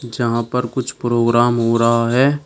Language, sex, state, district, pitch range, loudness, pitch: Hindi, male, Uttar Pradesh, Shamli, 115-125 Hz, -17 LUFS, 120 Hz